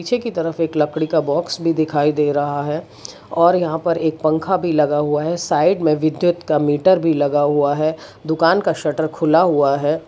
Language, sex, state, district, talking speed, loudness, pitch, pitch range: Hindi, female, Gujarat, Valsad, 215 wpm, -18 LUFS, 155 Hz, 150-170 Hz